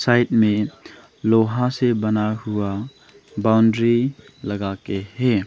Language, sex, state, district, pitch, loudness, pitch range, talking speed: Hindi, male, Arunachal Pradesh, Longding, 110 Hz, -20 LUFS, 105-120 Hz, 110 wpm